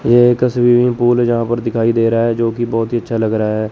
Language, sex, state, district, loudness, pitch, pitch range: Hindi, male, Chandigarh, Chandigarh, -14 LUFS, 115 Hz, 115-120 Hz